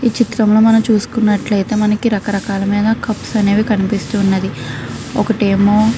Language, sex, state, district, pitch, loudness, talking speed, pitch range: Telugu, female, Andhra Pradesh, Krishna, 210 Hz, -15 LUFS, 130 wpm, 200-220 Hz